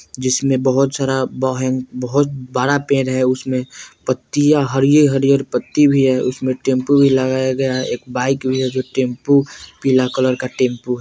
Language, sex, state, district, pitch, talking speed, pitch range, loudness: Bajjika, male, Bihar, Vaishali, 130 Hz, 170 wpm, 130-135 Hz, -17 LUFS